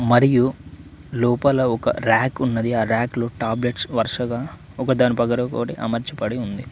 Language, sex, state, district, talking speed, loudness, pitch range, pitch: Telugu, male, Telangana, Mahabubabad, 135 wpm, -21 LUFS, 115-125 Hz, 120 Hz